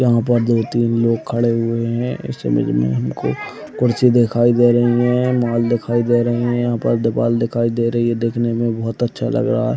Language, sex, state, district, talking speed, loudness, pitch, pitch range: Hindi, male, Chhattisgarh, Raigarh, 220 wpm, -17 LUFS, 120 Hz, 115-120 Hz